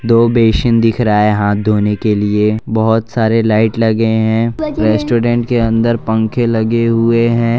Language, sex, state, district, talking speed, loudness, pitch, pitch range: Hindi, male, Gujarat, Valsad, 165 wpm, -13 LUFS, 115 Hz, 110-115 Hz